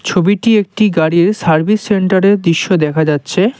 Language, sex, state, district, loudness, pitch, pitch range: Bengali, male, West Bengal, Cooch Behar, -12 LUFS, 190 Hz, 165-205 Hz